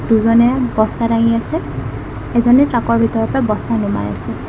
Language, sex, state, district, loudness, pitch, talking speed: Assamese, female, Assam, Kamrup Metropolitan, -15 LUFS, 230 Hz, 145 wpm